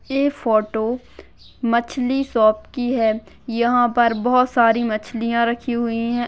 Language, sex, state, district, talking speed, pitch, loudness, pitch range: Hindi, female, Chhattisgarh, Rajnandgaon, 135 wpm, 235 Hz, -19 LUFS, 230-245 Hz